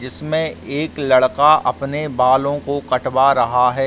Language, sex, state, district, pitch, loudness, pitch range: Hindi, male, Bihar, Gaya, 140 Hz, -17 LUFS, 130-150 Hz